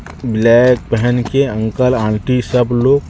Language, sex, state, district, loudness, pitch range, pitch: Hindi, male, Chhattisgarh, Raipur, -14 LUFS, 115-125 Hz, 120 Hz